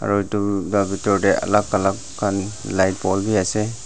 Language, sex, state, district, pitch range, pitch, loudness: Nagamese, male, Nagaland, Dimapur, 95-105 Hz, 100 Hz, -20 LUFS